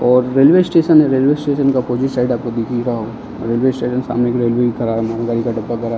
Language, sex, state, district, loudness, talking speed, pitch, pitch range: Hindi, male, Uttar Pradesh, Ghazipur, -15 LUFS, 210 wpm, 120 Hz, 115-130 Hz